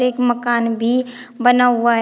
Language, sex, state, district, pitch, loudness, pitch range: Hindi, female, Uttar Pradesh, Shamli, 245 Hz, -16 LUFS, 235-245 Hz